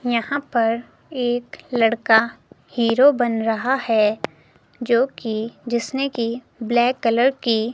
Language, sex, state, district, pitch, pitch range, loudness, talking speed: Hindi, female, Himachal Pradesh, Shimla, 235 Hz, 225-250 Hz, -20 LUFS, 110 wpm